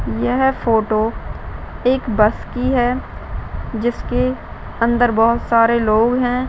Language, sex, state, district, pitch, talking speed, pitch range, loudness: Hindi, female, Bihar, Madhepura, 230 Hz, 110 wpm, 215-245 Hz, -17 LUFS